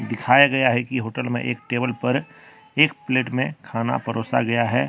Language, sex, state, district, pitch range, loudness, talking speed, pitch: Hindi, male, Jharkhand, Deoghar, 115-130 Hz, -21 LUFS, 195 wpm, 125 Hz